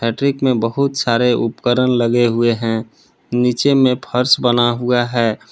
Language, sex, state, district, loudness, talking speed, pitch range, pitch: Hindi, male, Jharkhand, Palamu, -16 LUFS, 150 wpm, 115-125 Hz, 120 Hz